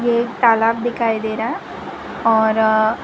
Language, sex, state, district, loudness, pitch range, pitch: Hindi, female, Gujarat, Valsad, -17 LUFS, 220-235 Hz, 225 Hz